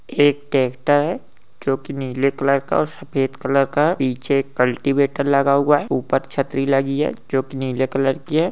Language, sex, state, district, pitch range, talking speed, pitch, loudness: Hindi, male, Uttar Pradesh, Ghazipur, 135-145 Hz, 195 wpm, 140 Hz, -20 LUFS